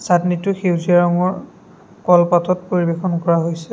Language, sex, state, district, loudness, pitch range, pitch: Assamese, male, Assam, Sonitpur, -17 LUFS, 175-180 Hz, 175 Hz